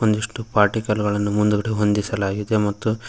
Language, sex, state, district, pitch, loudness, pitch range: Kannada, male, Karnataka, Koppal, 105 Hz, -21 LUFS, 105-110 Hz